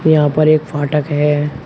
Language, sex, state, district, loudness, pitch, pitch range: Hindi, male, Uttar Pradesh, Shamli, -14 LUFS, 150 Hz, 145-155 Hz